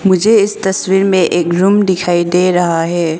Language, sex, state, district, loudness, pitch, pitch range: Hindi, female, Arunachal Pradesh, Longding, -12 LUFS, 185 Hz, 175-195 Hz